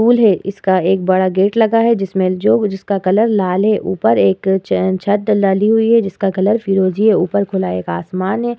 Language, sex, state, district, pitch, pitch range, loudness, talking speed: Hindi, female, Uttar Pradesh, Muzaffarnagar, 195 Hz, 190-215 Hz, -15 LUFS, 210 wpm